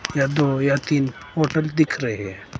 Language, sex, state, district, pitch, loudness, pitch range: Hindi, male, Himachal Pradesh, Shimla, 140 Hz, -21 LUFS, 135-155 Hz